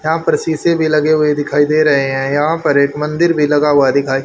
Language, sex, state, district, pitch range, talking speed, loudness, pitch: Hindi, male, Haryana, Rohtak, 140-155 Hz, 255 wpm, -13 LUFS, 150 Hz